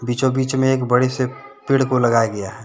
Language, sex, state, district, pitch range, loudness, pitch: Hindi, male, Jharkhand, Deoghar, 120-130 Hz, -18 LUFS, 125 Hz